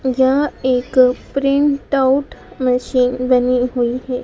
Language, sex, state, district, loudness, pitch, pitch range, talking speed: Hindi, female, Madhya Pradesh, Dhar, -16 LUFS, 255 Hz, 250-275 Hz, 100 wpm